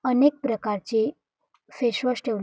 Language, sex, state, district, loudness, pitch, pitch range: Marathi, female, Maharashtra, Dhule, -25 LUFS, 240 Hz, 220-255 Hz